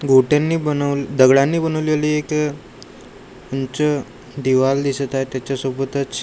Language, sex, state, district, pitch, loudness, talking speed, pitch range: Marathi, male, Maharashtra, Gondia, 140 Hz, -19 LUFS, 95 wpm, 130-150 Hz